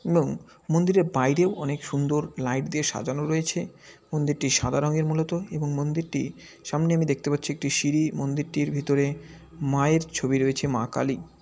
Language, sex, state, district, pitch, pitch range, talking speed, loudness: Bengali, male, West Bengal, Malda, 145 Hz, 140-160 Hz, 150 wpm, -25 LUFS